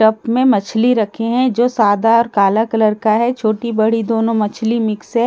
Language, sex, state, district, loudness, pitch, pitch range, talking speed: Hindi, female, Bihar, Katihar, -15 LUFS, 225 Hz, 215-235 Hz, 215 wpm